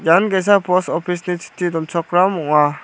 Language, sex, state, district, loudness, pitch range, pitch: Garo, male, Meghalaya, South Garo Hills, -17 LUFS, 165-180 Hz, 175 Hz